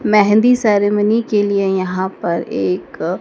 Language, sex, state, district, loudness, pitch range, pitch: Hindi, female, Madhya Pradesh, Dhar, -16 LUFS, 185-215 Hz, 205 Hz